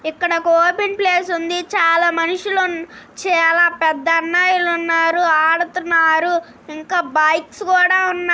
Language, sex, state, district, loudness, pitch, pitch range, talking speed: Telugu, female, Andhra Pradesh, Srikakulam, -16 LUFS, 340 Hz, 330-360 Hz, 130 wpm